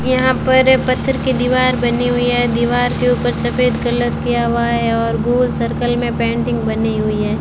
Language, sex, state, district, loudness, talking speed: Hindi, female, Rajasthan, Bikaner, -16 LUFS, 195 wpm